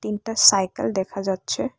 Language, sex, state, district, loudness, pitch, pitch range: Bengali, female, Tripura, West Tripura, -20 LUFS, 200 Hz, 190-220 Hz